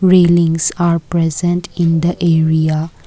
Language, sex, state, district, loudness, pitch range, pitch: English, female, Assam, Kamrup Metropolitan, -14 LUFS, 165-175 Hz, 170 Hz